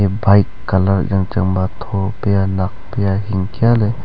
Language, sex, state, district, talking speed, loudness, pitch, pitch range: Wancho, male, Arunachal Pradesh, Longding, 160 wpm, -17 LUFS, 100 Hz, 95-105 Hz